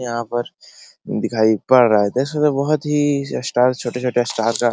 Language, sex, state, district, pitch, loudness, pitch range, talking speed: Hindi, male, Bihar, Araria, 125 Hz, -18 LUFS, 115-140 Hz, 200 wpm